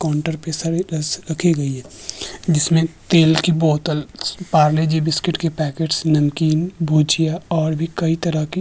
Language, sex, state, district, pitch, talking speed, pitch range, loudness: Hindi, male, Uttar Pradesh, Hamirpur, 160 Hz, 130 wpm, 155-165 Hz, -19 LUFS